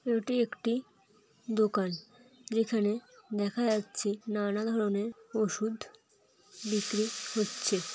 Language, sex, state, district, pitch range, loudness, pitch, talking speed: Bengali, female, West Bengal, Kolkata, 210-235 Hz, -32 LUFS, 220 Hz, 85 wpm